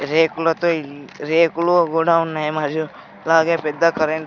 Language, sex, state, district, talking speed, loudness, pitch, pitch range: Telugu, male, Andhra Pradesh, Sri Satya Sai, 140 wpm, -18 LUFS, 160 Hz, 155-165 Hz